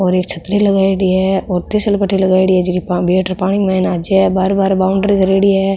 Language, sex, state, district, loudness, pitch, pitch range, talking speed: Rajasthani, female, Rajasthan, Nagaur, -14 LUFS, 190 Hz, 185-195 Hz, 240 wpm